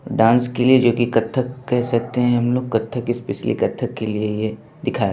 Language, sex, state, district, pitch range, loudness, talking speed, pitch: Hindi, male, Bihar, Begusarai, 115-125 Hz, -20 LUFS, 210 wpm, 120 Hz